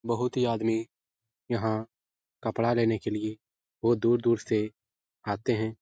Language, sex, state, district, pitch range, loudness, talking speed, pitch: Hindi, male, Bihar, Jahanabad, 110-120 Hz, -29 LUFS, 135 wpm, 115 Hz